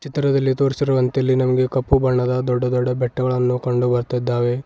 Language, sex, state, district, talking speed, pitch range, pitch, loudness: Kannada, male, Karnataka, Bidar, 140 wpm, 125-130 Hz, 125 Hz, -19 LUFS